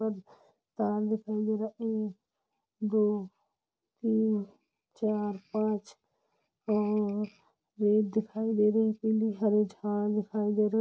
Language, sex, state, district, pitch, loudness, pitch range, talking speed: Hindi, female, Jharkhand, Jamtara, 215 Hz, -30 LUFS, 210-220 Hz, 110 wpm